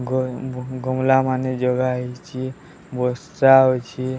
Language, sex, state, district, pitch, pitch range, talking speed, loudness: Odia, male, Odisha, Sambalpur, 130 Hz, 125-130 Hz, 100 wpm, -20 LUFS